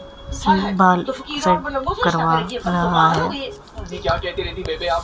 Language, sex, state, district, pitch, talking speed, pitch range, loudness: Hindi, female, Haryana, Jhajjar, 190 Hz, 50 wpm, 175-265 Hz, -19 LUFS